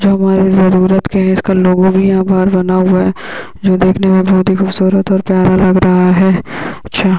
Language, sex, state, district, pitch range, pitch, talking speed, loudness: Hindi, female, Bihar, Bhagalpur, 185-190 Hz, 190 Hz, 210 wpm, -11 LUFS